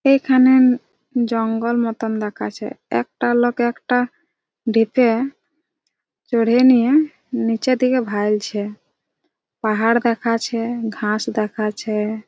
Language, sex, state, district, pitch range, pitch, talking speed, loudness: Bengali, female, West Bengal, Jhargram, 220-255 Hz, 235 Hz, 90 wpm, -19 LUFS